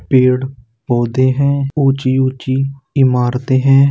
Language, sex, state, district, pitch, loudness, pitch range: Hindi, male, Uttar Pradesh, Jalaun, 130 Hz, -14 LUFS, 125-135 Hz